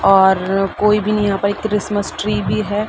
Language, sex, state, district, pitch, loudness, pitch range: Hindi, female, Uttar Pradesh, Gorakhpur, 200 Hz, -17 LUFS, 190-210 Hz